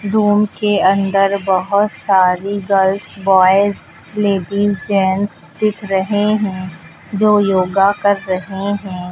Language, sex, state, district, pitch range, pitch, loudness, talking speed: Hindi, female, Uttar Pradesh, Lucknow, 190-205 Hz, 195 Hz, -15 LUFS, 110 wpm